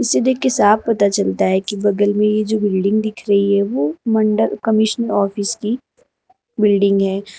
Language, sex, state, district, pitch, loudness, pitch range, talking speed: Hindi, female, Uttar Pradesh, Lucknow, 210 Hz, -17 LUFS, 200-220 Hz, 180 wpm